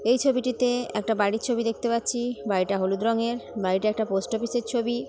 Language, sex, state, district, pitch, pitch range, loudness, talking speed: Bengali, female, West Bengal, Paschim Medinipur, 230 Hz, 210-240 Hz, -26 LUFS, 190 wpm